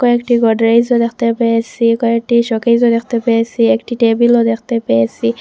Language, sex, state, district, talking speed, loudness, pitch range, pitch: Bengali, female, Assam, Hailakandi, 165 wpm, -13 LUFS, 230-235 Hz, 230 Hz